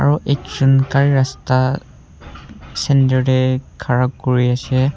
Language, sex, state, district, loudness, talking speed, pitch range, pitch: Nagamese, male, Nagaland, Kohima, -16 LUFS, 110 wpm, 125-135 Hz, 130 Hz